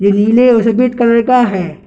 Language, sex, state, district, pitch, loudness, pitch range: Hindi, male, Bihar, Gaya, 235 Hz, -11 LUFS, 200-245 Hz